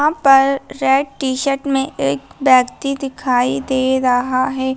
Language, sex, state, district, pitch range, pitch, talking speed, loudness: Hindi, female, Bihar, Darbhanga, 255-275 Hz, 265 Hz, 140 wpm, -16 LUFS